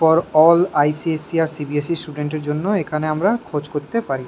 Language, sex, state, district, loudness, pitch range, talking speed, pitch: Bengali, male, West Bengal, Kolkata, -19 LUFS, 150-165 Hz, 195 wpm, 155 Hz